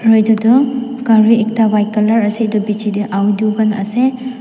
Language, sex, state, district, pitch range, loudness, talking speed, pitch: Nagamese, female, Nagaland, Dimapur, 210-230 Hz, -14 LUFS, 190 wpm, 220 Hz